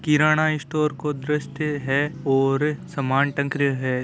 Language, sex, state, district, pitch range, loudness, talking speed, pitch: Hindi, male, Rajasthan, Nagaur, 135-150 Hz, -22 LUFS, 150 wpm, 145 Hz